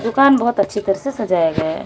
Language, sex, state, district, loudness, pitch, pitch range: Hindi, female, Odisha, Malkangiri, -17 LUFS, 205 Hz, 185-260 Hz